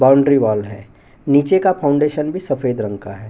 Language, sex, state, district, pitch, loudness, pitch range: Hindi, male, Chhattisgarh, Bastar, 135 Hz, -16 LUFS, 110-145 Hz